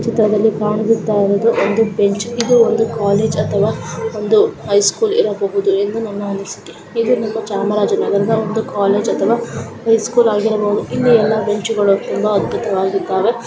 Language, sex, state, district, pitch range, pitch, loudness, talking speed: Kannada, female, Karnataka, Chamarajanagar, 200-225 Hz, 215 Hz, -16 LUFS, 140 wpm